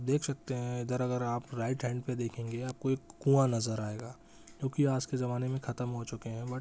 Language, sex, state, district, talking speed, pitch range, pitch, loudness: Hindi, male, Bihar, Saran, 245 wpm, 115-130 Hz, 125 Hz, -34 LUFS